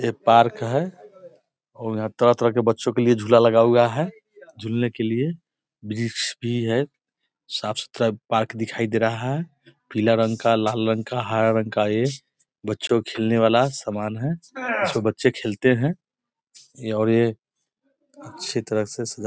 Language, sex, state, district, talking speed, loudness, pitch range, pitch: Hindi, male, Bihar, East Champaran, 170 wpm, -22 LUFS, 110-135 Hz, 115 Hz